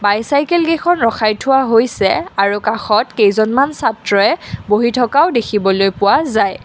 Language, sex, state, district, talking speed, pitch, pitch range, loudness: Assamese, female, Assam, Kamrup Metropolitan, 125 wpm, 220 Hz, 205-265 Hz, -14 LUFS